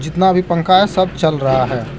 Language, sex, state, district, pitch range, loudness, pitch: Hindi, male, Jharkhand, Deoghar, 140-185 Hz, -14 LUFS, 170 Hz